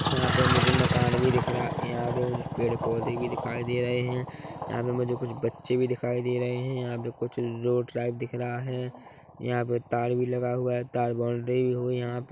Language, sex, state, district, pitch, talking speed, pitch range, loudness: Hindi, male, Chhattisgarh, Korba, 125 Hz, 240 wpm, 120-125 Hz, -28 LUFS